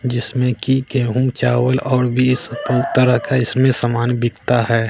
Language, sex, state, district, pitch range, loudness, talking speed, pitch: Hindi, male, Bihar, Katihar, 120-130 Hz, -17 LUFS, 160 wpm, 125 Hz